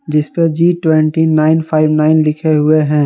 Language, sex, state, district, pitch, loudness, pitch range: Hindi, male, Jharkhand, Garhwa, 155 Hz, -12 LUFS, 155-160 Hz